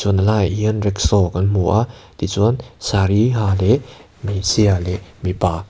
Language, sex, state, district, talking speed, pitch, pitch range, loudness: Mizo, male, Mizoram, Aizawl, 145 wpm, 100 Hz, 95-105 Hz, -18 LUFS